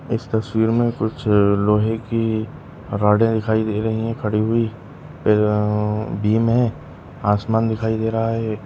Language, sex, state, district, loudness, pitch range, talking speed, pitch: Hindi, female, Goa, North and South Goa, -20 LUFS, 105-115 Hz, 150 wpm, 110 Hz